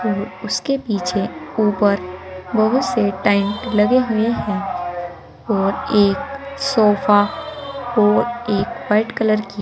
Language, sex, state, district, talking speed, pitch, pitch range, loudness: Hindi, female, Uttar Pradesh, Saharanpur, 110 wpm, 215 Hz, 200-250 Hz, -18 LUFS